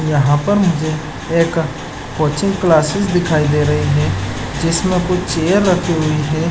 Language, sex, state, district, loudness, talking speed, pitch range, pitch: Hindi, male, Chhattisgarh, Balrampur, -16 LUFS, 150 wpm, 150-180 Hz, 160 Hz